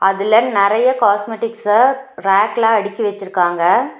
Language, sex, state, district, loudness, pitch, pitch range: Tamil, female, Tamil Nadu, Nilgiris, -15 LUFS, 215 Hz, 195-230 Hz